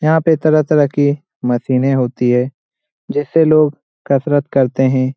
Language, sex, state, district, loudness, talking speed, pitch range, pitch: Hindi, male, Bihar, Jamui, -15 LUFS, 140 wpm, 130-155 Hz, 140 Hz